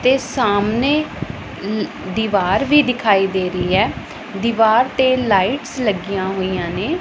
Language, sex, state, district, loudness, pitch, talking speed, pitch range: Punjabi, female, Punjab, Pathankot, -17 LUFS, 220 Hz, 120 wpm, 195-260 Hz